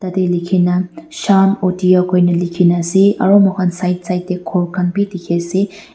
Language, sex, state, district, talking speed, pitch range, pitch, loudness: Nagamese, female, Nagaland, Dimapur, 210 wpm, 180-195 Hz, 185 Hz, -15 LUFS